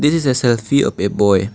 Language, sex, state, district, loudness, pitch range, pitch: English, male, Arunachal Pradesh, Lower Dibang Valley, -16 LUFS, 110-145 Hz, 130 Hz